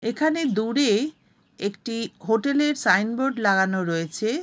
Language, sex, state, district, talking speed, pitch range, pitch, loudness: Bengali, female, West Bengal, Jalpaiguri, 110 wpm, 200-280 Hz, 230 Hz, -23 LUFS